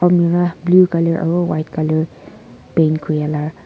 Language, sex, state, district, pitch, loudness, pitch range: Nagamese, female, Nagaland, Kohima, 165 Hz, -16 LUFS, 155-175 Hz